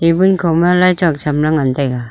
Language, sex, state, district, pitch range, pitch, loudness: Wancho, female, Arunachal Pradesh, Longding, 145-180 Hz, 165 Hz, -14 LUFS